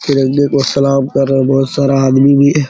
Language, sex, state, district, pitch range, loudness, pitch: Hindi, male, Bihar, Araria, 135-140 Hz, -11 LUFS, 140 Hz